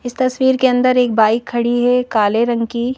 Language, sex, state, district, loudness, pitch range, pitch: Hindi, female, Madhya Pradesh, Bhopal, -15 LUFS, 235-255 Hz, 245 Hz